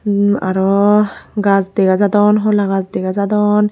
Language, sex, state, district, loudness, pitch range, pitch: Chakma, female, Tripura, Unakoti, -14 LUFS, 195-210 Hz, 205 Hz